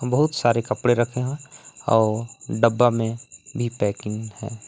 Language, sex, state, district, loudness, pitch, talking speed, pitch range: Hindi, male, Jharkhand, Palamu, -23 LUFS, 120 Hz, 155 wpm, 110-125 Hz